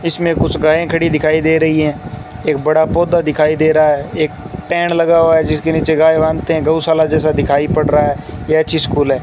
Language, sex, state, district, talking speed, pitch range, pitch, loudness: Hindi, male, Rajasthan, Bikaner, 230 wpm, 150-160 Hz, 155 Hz, -14 LUFS